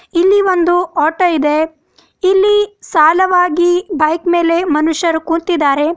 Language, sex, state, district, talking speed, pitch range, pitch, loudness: Kannada, female, Karnataka, Bidar, 100 wpm, 315-360 Hz, 340 Hz, -13 LUFS